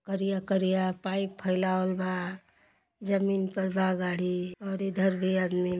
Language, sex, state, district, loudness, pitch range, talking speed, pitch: Bhojpuri, female, Uttar Pradesh, Gorakhpur, -29 LUFS, 185-195 Hz, 145 wpm, 190 Hz